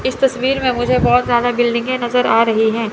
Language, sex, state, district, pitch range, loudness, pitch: Hindi, female, Chandigarh, Chandigarh, 235-255 Hz, -15 LUFS, 245 Hz